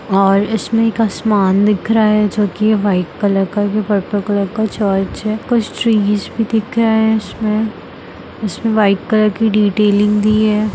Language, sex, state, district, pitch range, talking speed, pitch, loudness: Hindi, female, Bihar, Jamui, 205-220 Hz, 180 wpm, 210 Hz, -15 LUFS